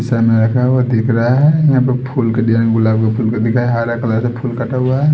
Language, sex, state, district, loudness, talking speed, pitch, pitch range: Hindi, male, Odisha, Sambalpur, -14 LUFS, 290 wpm, 120 Hz, 115-130 Hz